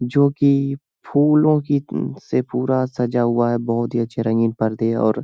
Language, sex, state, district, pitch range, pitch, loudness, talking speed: Hindi, male, Uttar Pradesh, Hamirpur, 115-140 Hz, 125 Hz, -19 LUFS, 195 wpm